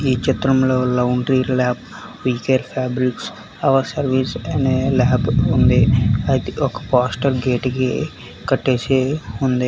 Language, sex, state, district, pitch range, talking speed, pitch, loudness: Telugu, male, Telangana, Hyderabad, 125-130 Hz, 105 wpm, 130 Hz, -18 LUFS